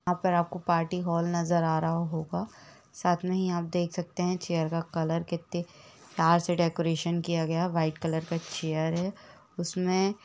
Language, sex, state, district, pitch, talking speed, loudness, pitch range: Hindi, female, Jharkhand, Jamtara, 170 Hz, 215 wpm, -29 LUFS, 165-180 Hz